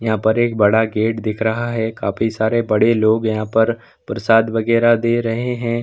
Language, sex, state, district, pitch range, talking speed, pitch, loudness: Hindi, male, Bihar, Samastipur, 110-115 Hz, 195 wpm, 115 Hz, -17 LUFS